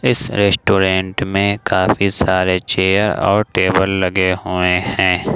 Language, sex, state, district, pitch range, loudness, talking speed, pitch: Hindi, male, Jharkhand, Ranchi, 95-100 Hz, -15 LUFS, 125 wpm, 95 Hz